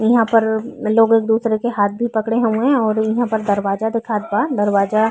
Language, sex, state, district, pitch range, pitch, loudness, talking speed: Bhojpuri, female, Uttar Pradesh, Ghazipur, 215-230 Hz, 220 Hz, -17 LUFS, 210 wpm